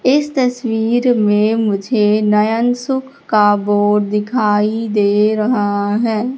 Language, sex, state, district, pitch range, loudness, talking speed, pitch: Hindi, female, Madhya Pradesh, Katni, 210-245 Hz, -15 LUFS, 105 wpm, 215 Hz